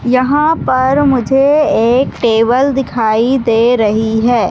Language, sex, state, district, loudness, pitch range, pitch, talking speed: Hindi, female, Madhya Pradesh, Katni, -12 LUFS, 230-270 Hz, 245 Hz, 120 wpm